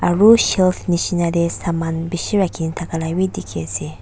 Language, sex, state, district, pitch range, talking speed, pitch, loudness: Nagamese, female, Nagaland, Dimapur, 165-185 Hz, 195 wpm, 170 Hz, -18 LUFS